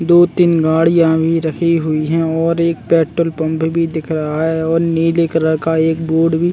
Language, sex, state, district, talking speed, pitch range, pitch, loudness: Hindi, male, Chhattisgarh, Bilaspur, 195 wpm, 160-165 Hz, 165 Hz, -15 LUFS